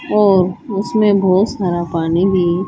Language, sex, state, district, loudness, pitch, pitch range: Hindi, female, Haryana, Charkhi Dadri, -15 LUFS, 190 Hz, 175-205 Hz